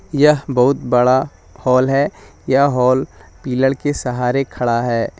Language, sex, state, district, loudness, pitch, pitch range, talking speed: Hindi, male, Jharkhand, Jamtara, -16 LUFS, 130 Hz, 125-140 Hz, 140 wpm